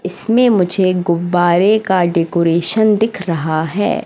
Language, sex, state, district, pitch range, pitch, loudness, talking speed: Hindi, female, Madhya Pradesh, Katni, 170-210 Hz, 180 Hz, -14 LUFS, 120 wpm